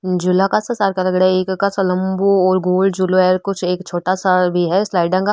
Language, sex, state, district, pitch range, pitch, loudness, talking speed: Rajasthani, female, Rajasthan, Nagaur, 185-195 Hz, 185 Hz, -16 LUFS, 145 wpm